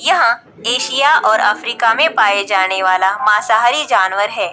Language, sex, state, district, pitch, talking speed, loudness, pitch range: Hindi, female, Bihar, Katihar, 225 Hz, 145 wpm, -13 LUFS, 200-250 Hz